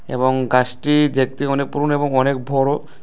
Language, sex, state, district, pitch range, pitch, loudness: Bengali, male, Tripura, West Tripura, 130-145 Hz, 135 Hz, -18 LUFS